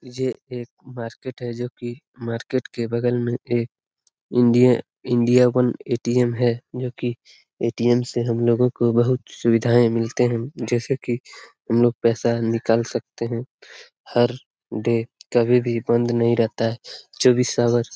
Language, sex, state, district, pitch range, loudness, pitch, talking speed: Hindi, male, Bihar, Lakhisarai, 115-125 Hz, -21 LUFS, 120 Hz, 155 wpm